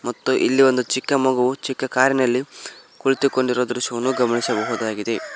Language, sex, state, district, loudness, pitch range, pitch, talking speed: Kannada, male, Karnataka, Koppal, -20 LUFS, 120-130 Hz, 130 Hz, 110 wpm